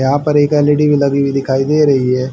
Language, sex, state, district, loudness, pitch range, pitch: Hindi, male, Haryana, Rohtak, -13 LUFS, 135-150 Hz, 140 Hz